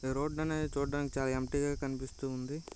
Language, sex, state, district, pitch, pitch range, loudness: Telugu, male, Andhra Pradesh, Visakhapatnam, 140 Hz, 130-145 Hz, -35 LUFS